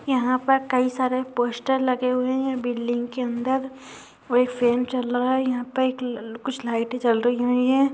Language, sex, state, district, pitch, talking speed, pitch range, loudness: Hindi, female, Bihar, Sitamarhi, 250 Hz, 195 wpm, 245-260 Hz, -23 LUFS